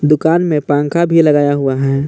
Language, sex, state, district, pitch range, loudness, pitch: Hindi, male, Jharkhand, Palamu, 145-160 Hz, -13 LUFS, 150 Hz